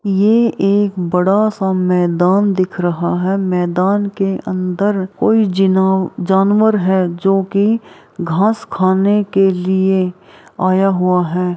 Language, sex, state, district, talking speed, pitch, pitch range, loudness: Hindi, female, Bihar, Araria, 120 wpm, 190 Hz, 180-200 Hz, -15 LUFS